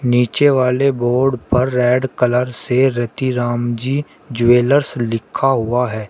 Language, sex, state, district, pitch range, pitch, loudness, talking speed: Hindi, male, Uttar Pradesh, Shamli, 120-130 Hz, 125 Hz, -16 LUFS, 130 wpm